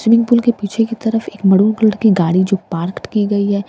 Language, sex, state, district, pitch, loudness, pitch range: Hindi, female, Bihar, Katihar, 205 Hz, -15 LUFS, 195-225 Hz